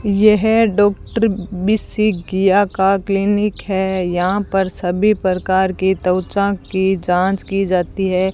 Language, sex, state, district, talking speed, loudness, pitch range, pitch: Hindi, female, Rajasthan, Bikaner, 120 wpm, -17 LUFS, 185-205 Hz, 195 Hz